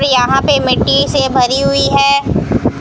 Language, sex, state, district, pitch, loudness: Hindi, female, Rajasthan, Bikaner, 250 Hz, -12 LUFS